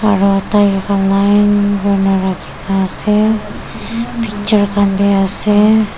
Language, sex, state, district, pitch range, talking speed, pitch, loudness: Nagamese, female, Nagaland, Dimapur, 195-210 Hz, 130 wpm, 205 Hz, -13 LUFS